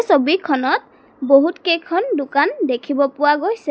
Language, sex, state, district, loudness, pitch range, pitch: Assamese, female, Assam, Sonitpur, -17 LUFS, 280-355 Hz, 295 Hz